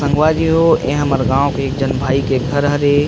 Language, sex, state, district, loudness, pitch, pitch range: Chhattisgarhi, male, Chhattisgarh, Rajnandgaon, -15 LUFS, 145 Hz, 135-145 Hz